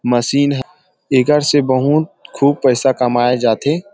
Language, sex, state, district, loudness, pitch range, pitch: Chhattisgarhi, male, Chhattisgarh, Rajnandgaon, -15 LUFS, 125-150 Hz, 140 Hz